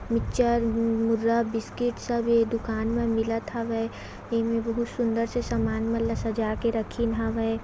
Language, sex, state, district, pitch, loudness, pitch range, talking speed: Chhattisgarhi, female, Chhattisgarh, Raigarh, 230 Hz, -27 LUFS, 225-235 Hz, 165 wpm